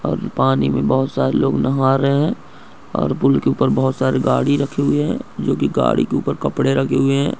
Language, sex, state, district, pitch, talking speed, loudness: Hindi, male, Rajasthan, Nagaur, 130 Hz, 225 wpm, -18 LUFS